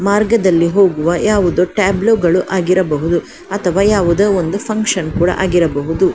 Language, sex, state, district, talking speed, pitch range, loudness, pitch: Kannada, female, Karnataka, Dakshina Kannada, 115 wpm, 170-200 Hz, -14 LUFS, 185 Hz